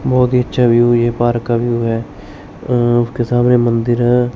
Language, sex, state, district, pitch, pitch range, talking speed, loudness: Hindi, male, Chandigarh, Chandigarh, 120 Hz, 120-125 Hz, 205 wpm, -14 LUFS